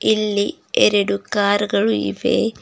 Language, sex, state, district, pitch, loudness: Kannada, female, Karnataka, Bidar, 205 Hz, -18 LUFS